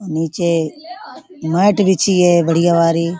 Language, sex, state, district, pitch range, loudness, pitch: Hindi, female, Uttar Pradesh, Budaun, 165-190 Hz, -15 LUFS, 170 Hz